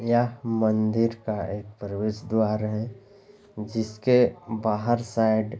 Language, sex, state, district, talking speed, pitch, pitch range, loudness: Hindi, male, Bihar, Lakhisarai, 105 wpm, 110 Hz, 110-120 Hz, -25 LUFS